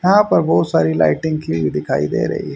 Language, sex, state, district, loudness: Hindi, male, Haryana, Rohtak, -17 LUFS